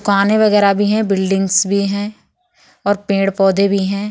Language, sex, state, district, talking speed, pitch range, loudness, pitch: Bundeli, female, Uttar Pradesh, Budaun, 160 wpm, 195-205 Hz, -15 LUFS, 200 Hz